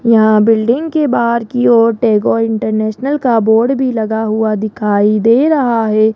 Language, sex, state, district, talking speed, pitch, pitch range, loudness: Hindi, female, Rajasthan, Jaipur, 165 wpm, 225 Hz, 220-240 Hz, -12 LUFS